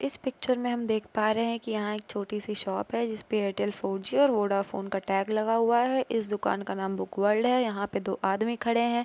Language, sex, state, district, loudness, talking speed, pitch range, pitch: Hindi, female, Uttar Pradesh, Jalaun, -28 LUFS, 260 wpm, 195-235 Hz, 215 Hz